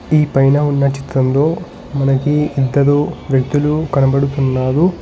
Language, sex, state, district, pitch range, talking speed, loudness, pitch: Telugu, male, Telangana, Hyderabad, 135-150 Hz, 95 wpm, -15 LUFS, 140 Hz